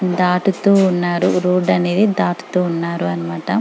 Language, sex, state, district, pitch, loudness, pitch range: Telugu, female, Telangana, Karimnagar, 180 Hz, -17 LUFS, 175-185 Hz